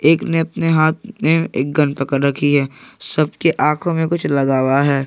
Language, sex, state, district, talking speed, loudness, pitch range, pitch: Hindi, male, Jharkhand, Garhwa, 215 wpm, -17 LUFS, 140-165 Hz, 150 Hz